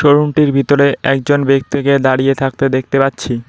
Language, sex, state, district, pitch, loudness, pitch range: Bengali, male, West Bengal, Cooch Behar, 135 Hz, -13 LUFS, 135-140 Hz